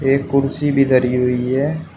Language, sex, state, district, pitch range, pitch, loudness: Hindi, male, Uttar Pradesh, Shamli, 130-140 Hz, 135 Hz, -17 LUFS